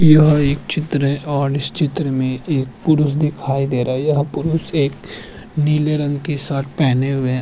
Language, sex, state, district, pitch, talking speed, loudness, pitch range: Hindi, male, Uttarakhand, Tehri Garhwal, 145 Hz, 200 wpm, -18 LUFS, 135-150 Hz